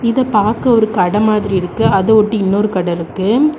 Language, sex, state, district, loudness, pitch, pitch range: Tamil, female, Tamil Nadu, Kanyakumari, -14 LUFS, 210 Hz, 190-225 Hz